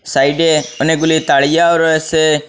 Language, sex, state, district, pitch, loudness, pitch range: Bengali, male, Assam, Hailakandi, 160 Hz, -13 LUFS, 155-160 Hz